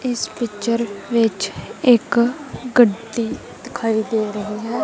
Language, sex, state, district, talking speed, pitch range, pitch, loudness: Punjabi, female, Punjab, Kapurthala, 110 wpm, 215-240 Hz, 230 Hz, -20 LUFS